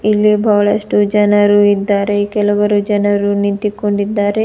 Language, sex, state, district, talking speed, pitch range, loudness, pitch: Kannada, female, Karnataka, Bidar, 95 wpm, 205-210 Hz, -13 LUFS, 205 Hz